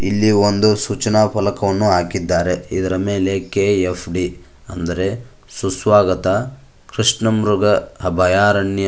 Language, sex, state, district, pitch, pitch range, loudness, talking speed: Kannada, male, Karnataka, Koppal, 100 Hz, 95-105 Hz, -17 LUFS, 90 wpm